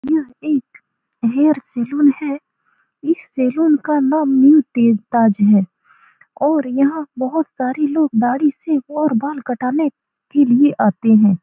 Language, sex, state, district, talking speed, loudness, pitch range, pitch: Hindi, female, Bihar, Saran, 140 wpm, -16 LUFS, 245-300 Hz, 280 Hz